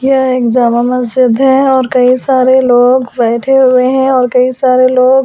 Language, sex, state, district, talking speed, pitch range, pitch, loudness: Hindi, female, Delhi, New Delhi, 195 wpm, 250-260 Hz, 255 Hz, -9 LUFS